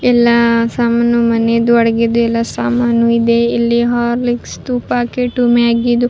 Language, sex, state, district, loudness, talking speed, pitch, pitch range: Kannada, female, Karnataka, Raichur, -13 LUFS, 120 wpm, 235 Hz, 235-240 Hz